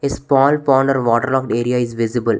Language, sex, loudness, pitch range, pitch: English, male, -16 LUFS, 115-135 Hz, 130 Hz